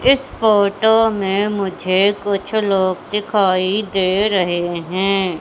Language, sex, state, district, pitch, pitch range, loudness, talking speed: Hindi, female, Madhya Pradesh, Katni, 195 Hz, 185-210 Hz, -17 LUFS, 110 wpm